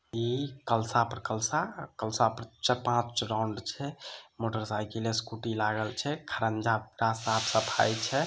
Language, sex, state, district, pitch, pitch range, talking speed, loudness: Maithili, male, Bihar, Samastipur, 115 Hz, 110-120 Hz, 115 wpm, -31 LUFS